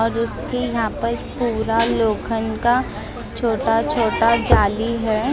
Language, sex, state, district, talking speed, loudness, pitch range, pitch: Hindi, female, Maharashtra, Mumbai Suburban, 125 wpm, -20 LUFS, 225-235 Hz, 230 Hz